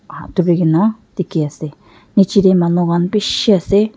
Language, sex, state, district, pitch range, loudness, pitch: Nagamese, female, Nagaland, Dimapur, 160-200 Hz, -15 LUFS, 175 Hz